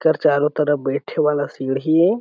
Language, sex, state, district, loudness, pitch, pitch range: Chhattisgarhi, male, Chhattisgarh, Sarguja, -19 LUFS, 145 Hz, 140-155 Hz